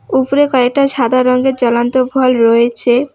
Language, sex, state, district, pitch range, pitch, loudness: Bengali, female, West Bengal, Alipurduar, 240-265 Hz, 255 Hz, -12 LUFS